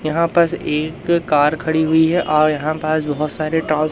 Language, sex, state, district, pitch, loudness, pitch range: Hindi, male, Madhya Pradesh, Umaria, 155 Hz, -17 LUFS, 155-160 Hz